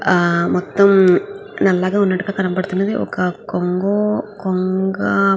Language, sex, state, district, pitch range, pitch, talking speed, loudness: Telugu, female, Andhra Pradesh, Guntur, 180-200 Hz, 190 Hz, 110 wpm, -17 LUFS